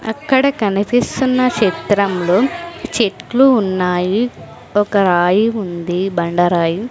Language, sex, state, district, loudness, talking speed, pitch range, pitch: Telugu, female, Andhra Pradesh, Sri Satya Sai, -15 LUFS, 85 wpm, 180-250 Hz, 205 Hz